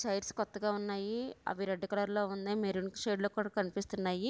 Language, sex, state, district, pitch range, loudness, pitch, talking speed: Telugu, female, Andhra Pradesh, Visakhapatnam, 195-210 Hz, -36 LUFS, 205 Hz, 180 wpm